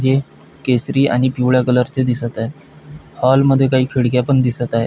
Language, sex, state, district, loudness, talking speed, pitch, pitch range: Marathi, male, Maharashtra, Pune, -16 LUFS, 170 wpm, 130 Hz, 125-135 Hz